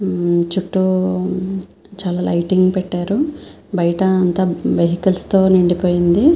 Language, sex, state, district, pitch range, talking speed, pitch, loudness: Telugu, female, Andhra Pradesh, Visakhapatnam, 175-190 Hz, 105 wpm, 185 Hz, -17 LUFS